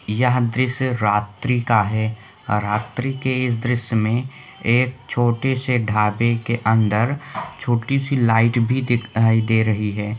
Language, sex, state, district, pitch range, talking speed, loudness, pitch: Hindi, male, Jharkhand, Sahebganj, 110-125 Hz, 135 wpm, -20 LUFS, 120 Hz